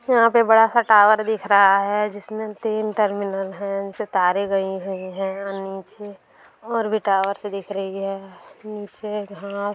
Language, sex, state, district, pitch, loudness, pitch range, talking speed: Hindi, female, Bihar, Saran, 200 Hz, -20 LUFS, 195-215 Hz, 160 wpm